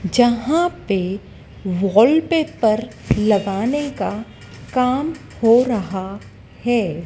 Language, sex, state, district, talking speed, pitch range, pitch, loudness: Hindi, female, Madhya Pradesh, Dhar, 75 wpm, 195-255 Hz, 225 Hz, -19 LUFS